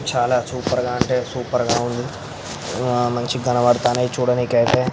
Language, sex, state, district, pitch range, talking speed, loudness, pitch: Telugu, male, Andhra Pradesh, Visakhapatnam, 120-125 Hz, 120 wpm, -20 LUFS, 125 Hz